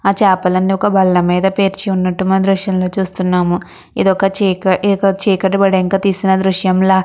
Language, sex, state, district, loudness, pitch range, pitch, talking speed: Telugu, female, Andhra Pradesh, Krishna, -14 LUFS, 185-195 Hz, 190 Hz, 170 wpm